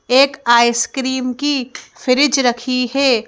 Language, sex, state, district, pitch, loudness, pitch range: Hindi, female, Madhya Pradesh, Bhopal, 255 Hz, -15 LUFS, 245-270 Hz